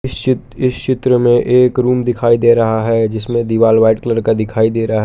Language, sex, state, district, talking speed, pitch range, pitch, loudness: Hindi, male, Jharkhand, Palamu, 235 wpm, 110-125 Hz, 115 Hz, -13 LUFS